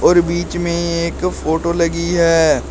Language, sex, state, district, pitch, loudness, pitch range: Hindi, male, Uttar Pradesh, Shamli, 170 Hz, -16 LUFS, 170-175 Hz